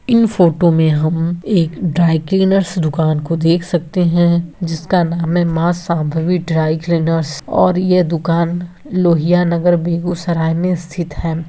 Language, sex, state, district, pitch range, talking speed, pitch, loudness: Hindi, female, Bihar, Begusarai, 165-175 Hz, 145 wpm, 170 Hz, -15 LUFS